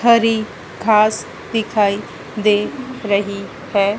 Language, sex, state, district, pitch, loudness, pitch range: Hindi, female, Madhya Pradesh, Dhar, 215 Hz, -18 LUFS, 205-225 Hz